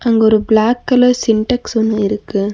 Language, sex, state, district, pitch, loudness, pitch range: Tamil, female, Tamil Nadu, Nilgiris, 220 Hz, -14 LUFS, 215-245 Hz